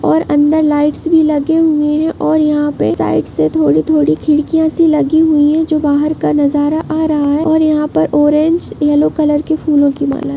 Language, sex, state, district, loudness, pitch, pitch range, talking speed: Hindi, female, Uttar Pradesh, Jalaun, -12 LUFS, 300 Hz, 285-315 Hz, 210 wpm